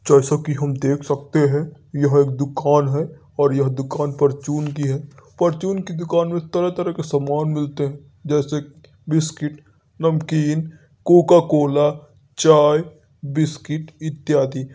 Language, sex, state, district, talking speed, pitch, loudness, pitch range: Hindi, male, Uttar Pradesh, Varanasi, 140 wpm, 150 Hz, -19 LUFS, 140-155 Hz